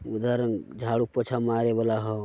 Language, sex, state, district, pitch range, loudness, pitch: Magahi, male, Bihar, Jamui, 110-120 Hz, -27 LUFS, 115 Hz